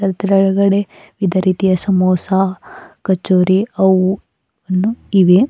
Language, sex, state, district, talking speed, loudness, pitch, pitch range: Kannada, female, Karnataka, Bidar, 85 wpm, -15 LUFS, 190 Hz, 185-195 Hz